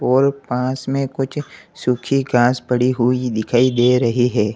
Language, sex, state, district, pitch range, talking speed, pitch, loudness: Hindi, male, Uttar Pradesh, Lalitpur, 120-135 Hz, 160 wpm, 125 Hz, -18 LUFS